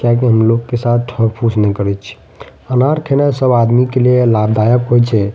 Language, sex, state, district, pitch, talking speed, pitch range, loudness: Maithili, male, Bihar, Madhepura, 120 Hz, 215 wpm, 110-125 Hz, -13 LUFS